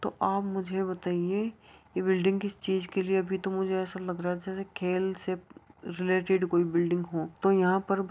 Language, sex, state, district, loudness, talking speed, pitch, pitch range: Hindi, female, Uttar Pradesh, Jyotiba Phule Nagar, -30 LUFS, 215 wpm, 190 Hz, 180-190 Hz